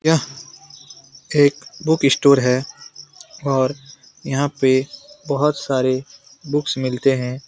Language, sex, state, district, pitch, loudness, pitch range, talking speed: Hindi, male, Bihar, Lakhisarai, 140 Hz, -19 LUFS, 130-145 Hz, 105 wpm